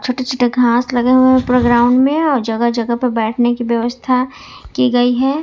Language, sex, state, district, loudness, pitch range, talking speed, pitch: Hindi, female, Jharkhand, Ranchi, -14 LUFS, 240-255 Hz, 190 wpm, 245 Hz